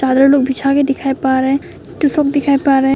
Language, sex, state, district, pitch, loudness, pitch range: Hindi, female, Arunachal Pradesh, Papum Pare, 275 Hz, -14 LUFS, 265-285 Hz